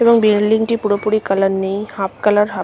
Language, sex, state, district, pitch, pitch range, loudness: Bengali, female, West Bengal, Malda, 210 Hz, 195-215 Hz, -16 LUFS